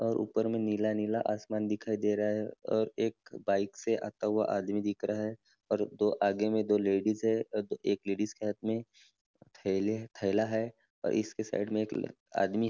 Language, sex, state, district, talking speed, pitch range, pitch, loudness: Hindi, male, Maharashtra, Nagpur, 210 wpm, 105-110 Hz, 105 Hz, -33 LUFS